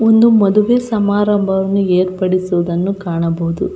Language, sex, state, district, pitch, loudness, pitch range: Kannada, female, Karnataka, Belgaum, 195 Hz, -14 LUFS, 180-210 Hz